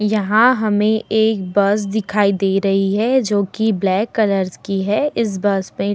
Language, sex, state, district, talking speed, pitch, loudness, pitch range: Hindi, female, Uttar Pradesh, Muzaffarnagar, 170 wpm, 205 Hz, -17 LUFS, 195-220 Hz